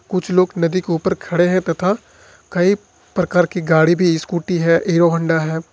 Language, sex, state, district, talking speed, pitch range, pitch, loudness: Hindi, male, Jharkhand, Ranchi, 190 wpm, 165-185 Hz, 175 Hz, -17 LUFS